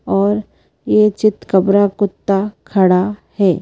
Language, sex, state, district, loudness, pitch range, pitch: Hindi, female, Madhya Pradesh, Bhopal, -15 LUFS, 190-210 Hz, 200 Hz